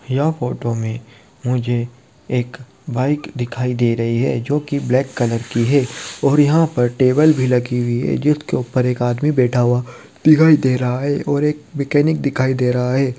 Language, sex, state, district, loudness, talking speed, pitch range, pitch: Hindi, male, Andhra Pradesh, Krishna, -17 LUFS, 170 wpm, 120-145 Hz, 125 Hz